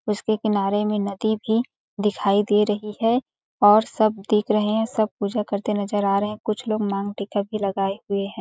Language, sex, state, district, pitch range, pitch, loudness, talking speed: Hindi, female, Chhattisgarh, Balrampur, 200-215 Hz, 210 Hz, -22 LUFS, 215 wpm